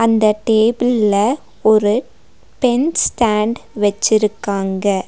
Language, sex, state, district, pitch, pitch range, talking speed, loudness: Tamil, female, Tamil Nadu, Nilgiris, 215 Hz, 205-235 Hz, 70 wpm, -16 LUFS